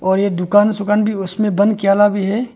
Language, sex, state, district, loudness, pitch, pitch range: Hindi, male, Arunachal Pradesh, Longding, -15 LUFS, 205 Hz, 195-210 Hz